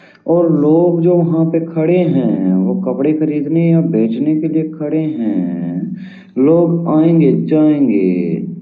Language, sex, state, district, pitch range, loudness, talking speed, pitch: Hindi, male, Uttar Pradesh, Varanasi, 150-170 Hz, -14 LUFS, 130 wpm, 160 Hz